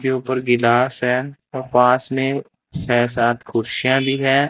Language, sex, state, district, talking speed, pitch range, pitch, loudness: Hindi, male, Rajasthan, Bikaner, 160 wpm, 120-135 Hz, 130 Hz, -18 LUFS